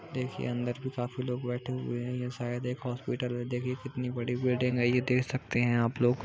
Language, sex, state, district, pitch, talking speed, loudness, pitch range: Hindi, male, Uttar Pradesh, Budaun, 125 Hz, 230 wpm, -32 LUFS, 120-125 Hz